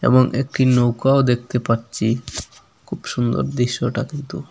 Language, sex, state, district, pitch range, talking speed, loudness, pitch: Bengali, male, Assam, Hailakandi, 120-130 Hz, 120 wpm, -19 LUFS, 125 Hz